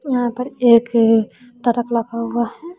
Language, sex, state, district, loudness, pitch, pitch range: Hindi, female, Bihar, West Champaran, -17 LUFS, 240 Hz, 230-245 Hz